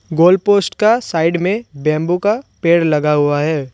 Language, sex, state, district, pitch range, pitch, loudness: Hindi, male, West Bengal, Alipurduar, 155-200 Hz, 170 Hz, -15 LUFS